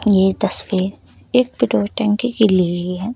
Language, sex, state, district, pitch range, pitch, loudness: Hindi, female, Uttar Pradesh, Lucknow, 185-225 Hz, 200 Hz, -18 LUFS